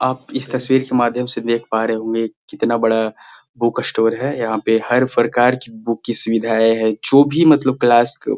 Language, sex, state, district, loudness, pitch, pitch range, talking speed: Hindi, male, Bihar, Gaya, -17 LUFS, 120 Hz, 115-130 Hz, 205 wpm